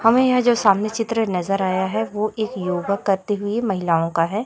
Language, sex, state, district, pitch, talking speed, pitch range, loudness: Hindi, female, Chhattisgarh, Raipur, 205 Hz, 215 wpm, 185-225 Hz, -20 LUFS